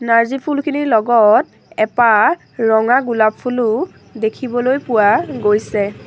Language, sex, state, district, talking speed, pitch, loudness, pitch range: Assamese, female, Assam, Sonitpur, 100 wpm, 230 Hz, -15 LUFS, 220-255 Hz